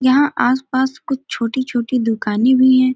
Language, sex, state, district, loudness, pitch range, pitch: Hindi, female, Bihar, Gopalganj, -17 LUFS, 245-265 Hz, 255 Hz